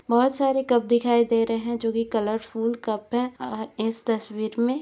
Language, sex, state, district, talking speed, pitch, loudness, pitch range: Hindi, female, Chhattisgarh, Bastar, 200 wpm, 230 Hz, -24 LUFS, 225-240 Hz